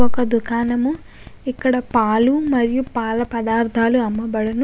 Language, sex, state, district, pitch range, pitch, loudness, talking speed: Telugu, female, Andhra Pradesh, Guntur, 230-255 Hz, 235 Hz, -19 LUFS, 105 wpm